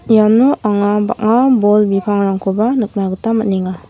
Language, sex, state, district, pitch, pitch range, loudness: Garo, female, Meghalaya, West Garo Hills, 210 Hz, 200-225 Hz, -14 LUFS